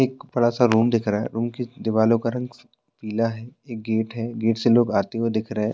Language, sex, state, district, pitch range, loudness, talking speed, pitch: Hindi, male, Uttarakhand, Tehri Garhwal, 110-120 Hz, -22 LUFS, 260 wpm, 115 Hz